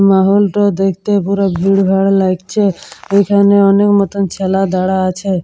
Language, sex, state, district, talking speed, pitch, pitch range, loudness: Bengali, female, West Bengal, Purulia, 130 wpm, 195 Hz, 190-200 Hz, -13 LUFS